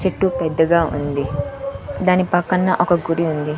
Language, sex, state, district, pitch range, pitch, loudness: Telugu, female, Andhra Pradesh, Sri Satya Sai, 155-185 Hz, 175 Hz, -19 LUFS